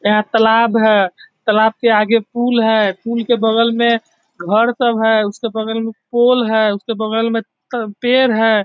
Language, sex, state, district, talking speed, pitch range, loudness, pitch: Hindi, male, Bihar, East Champaran, 175 wpm, 220-235 Hz, -15 LUFS, 225 Hz